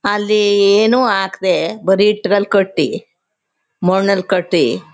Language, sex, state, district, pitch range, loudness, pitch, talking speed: Kannada, female, Karnataka, Chamarajanagar, 190-210 Hz, -14 LUFS, 200 Hz, 95 wpm